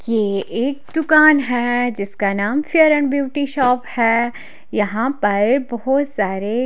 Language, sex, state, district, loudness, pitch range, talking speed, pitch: Hindi, female, Haryana, Charkhi Dadri, -17 LUFS, 215-280 Hz, 135 wpm, 245 Hz